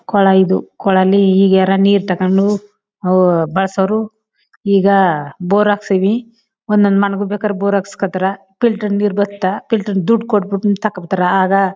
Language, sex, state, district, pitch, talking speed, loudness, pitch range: Kannada, female, Karnataka, Chamarajanagar, 200 Hz, 125 wpm, -14 LUFS, 190-205 Hz